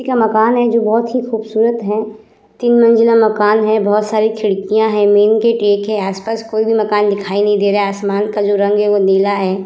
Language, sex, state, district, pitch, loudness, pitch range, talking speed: Hindi, female, Bihar, Vaishali, 215 Hz, -14 LUFS, 205-225 Hz, 235 wpm